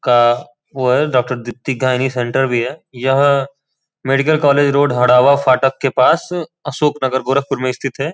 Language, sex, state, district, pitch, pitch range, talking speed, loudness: Hindi, male, Uttar Pradesh, Gorakhpur, 135 Hz, 125-140 Hz, 170 wpm, -15 LUFS